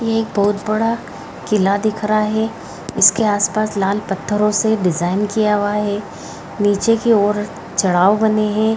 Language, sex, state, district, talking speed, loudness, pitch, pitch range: Hindi, female, Bihar, Jahanabad, 155 wpm, -17 LUFS, 210 Hz, 205-215 Hz